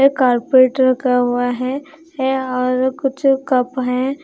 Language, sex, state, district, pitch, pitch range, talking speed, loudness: Hindi, female, Himachal Pradesh, Shimla, 260 Hz, 255-270 Hz, 115 wpm, -17 LUFS